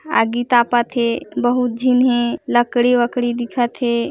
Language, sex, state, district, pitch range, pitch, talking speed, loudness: Hindi, female, Chhattisgarh, Bilaspur, 240-245 Hz, 240 Hz, 130 wpm, -17 LUFS